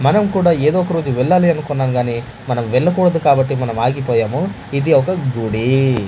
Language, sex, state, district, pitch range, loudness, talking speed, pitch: Telugu, male, Andhra Pradesh, Manyam, 125-170 Hz, -16 LUFS, 160 wpm, 135 Hz